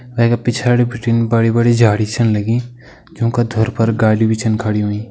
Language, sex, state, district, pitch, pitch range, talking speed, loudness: Hindi, male, Uttarakhand, Tehri Garhwal, 115 Hz, 110-120 Hz, 210 wpm, -15 LUFS